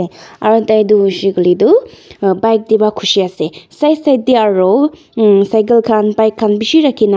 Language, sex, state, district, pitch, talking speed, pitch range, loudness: Nagamese, female, Nagaland, Dimapur, 215 Hz, 160 wpm, 195-230 Hz, -12 LUFS